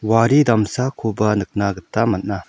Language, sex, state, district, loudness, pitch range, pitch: Garo, male, Meghalaya, South Garo Hills, -18 LUFS, 100-115 Hz, 110 Hz